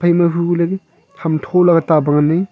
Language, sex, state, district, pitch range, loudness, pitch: Wancho, male, Arunachal Pradesh, Longding, 160-175 Hz, -15 LUFS, 170 Hz